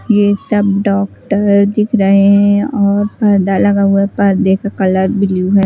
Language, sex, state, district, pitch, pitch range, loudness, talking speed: Hindi, female, Bihar, West Champaran, 200 Hz, 195-205 Hz, -12 LUFS, 170 wpm